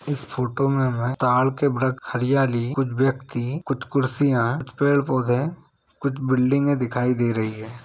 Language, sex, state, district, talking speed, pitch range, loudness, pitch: Hindi, male, Chhattisgarh, Bilaspur, 160 wpm, 125-140 Hz, -22 LUFS, 130 Hz